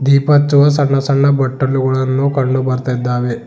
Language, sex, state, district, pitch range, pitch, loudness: Kannada, male, Karnataka, Bidar, 130-140 Hz, 135 Hz, -14 LUFS